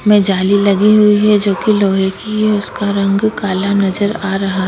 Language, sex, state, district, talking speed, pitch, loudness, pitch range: Hindi, female, Chhattisgarh, Korba, 205 wpm, 200 Hz, -13 LUFS, 195-210 Hz